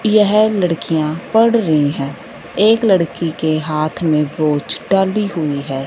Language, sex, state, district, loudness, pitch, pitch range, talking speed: Hindi, female, Punjab, Fazilka, -16 LUFS, 160 Hz, 150-205 Hz, 135 wpm